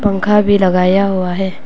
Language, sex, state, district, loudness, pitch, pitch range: Hindi, female, Arunachal Pradesh, Papum Pare, -13 LUFS, 190 Hz, 185-205 Hz